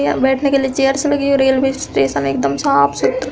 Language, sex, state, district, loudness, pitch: Hindi, female, Uttar Pradesh, Hamirpur, -15 LUFS, 265 Hz